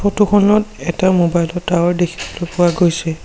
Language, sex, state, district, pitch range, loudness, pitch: Assamese, male, Assam, Sonitpur, 170-200 Hz, -15 LUFS, 175 Hz